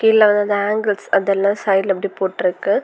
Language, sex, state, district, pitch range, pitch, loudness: Tamil, female, Tamil Nadu, Kanyakumari, 195-210 Hz, 200 Hz, -17 LUFS